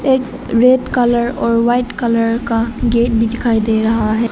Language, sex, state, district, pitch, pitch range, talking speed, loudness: Hindi, female, Arunachal Pradesh, Lower Dibang Valley, 235 Hz, 230-245 Hz, 165 wpm, -15 LUFS